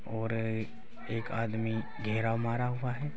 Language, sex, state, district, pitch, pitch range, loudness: Hindi, male, Bihar, Bhagalpur, 115 Hz, 110-115 Hz, -34 LUFS